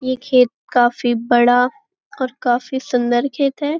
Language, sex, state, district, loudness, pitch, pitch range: Hindi, female, Maharashtra, Nagpur, -17 LUFS, 255 Hz, 245-275 Hz